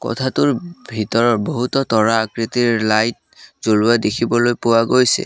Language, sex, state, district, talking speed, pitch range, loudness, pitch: Assamese, male, Assam, Kamrup Metropolitan, 115 wpm, 110-120 Hz, -17 LUFS, 115 Hz